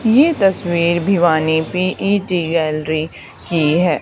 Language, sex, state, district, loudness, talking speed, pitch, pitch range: Hindi, female, Haryana, Charkhi Dadri, -16 LUFS, 105 wpm, 175 Hz, 160-190 Hz